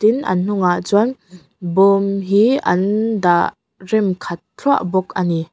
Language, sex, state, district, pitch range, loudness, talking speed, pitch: Mizo, female, Mizoram, Aizawl, 180-215 Hz, -17 LUFS, 140 wpm, 190 Hz